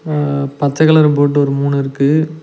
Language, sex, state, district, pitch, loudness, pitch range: Tamil, male, Tamil Nadu, Nilgiris, 145 Hz, -14 LUFS, 140-155 Hz